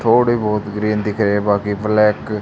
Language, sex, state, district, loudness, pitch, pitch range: Hindi, male, Haryana, Charkhi Dadri, -17 LUFS, 105 Hz, 105-110 Hz